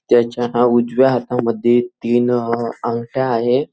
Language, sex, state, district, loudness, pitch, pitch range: Marathi, male, Maharashtra, Nagpur, -17 LUFS, 120 Hz, 120-125 Hz